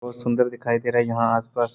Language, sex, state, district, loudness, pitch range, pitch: Hindi, male, Bihar, Sitamarhi, -22 LUFS, 115-120 Hz, 120 Hz